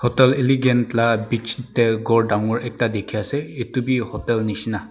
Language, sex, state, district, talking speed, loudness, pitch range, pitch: Nagamese, male, Nagaland, Dimapur, 170 wpm, -20 LUFS, 110-125 Hz, 120 Hz